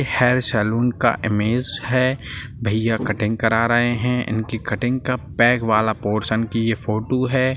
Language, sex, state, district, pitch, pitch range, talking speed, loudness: Hindi, male, Bihar, Sitamarhi, 115 Hz, 110-125 Hz, 165 wpm, -20 LUFS